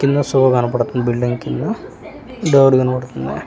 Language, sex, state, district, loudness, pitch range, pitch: Telugu, male, Telangana, Hyderabad, -16 LUFS, 125-140 Hz, 130 Hz